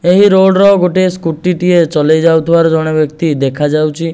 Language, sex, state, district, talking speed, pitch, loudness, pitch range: Odia, male, Odisha, Nuapada, 145 wpm, 165 Hz, -10 LUFS, 155-180 Hz